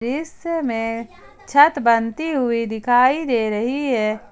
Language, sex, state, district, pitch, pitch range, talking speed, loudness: Hindi, female, Jharkhand, Ranchi, 245 Hz, 230-290 Hz, 125 wpm, -19 LUFS